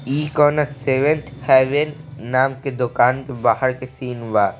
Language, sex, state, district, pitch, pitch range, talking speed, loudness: Bhojpuri, male, Bihar, East Champaran, 135 Hz, 125-145 Hz, 155 wpm, -19 LUFS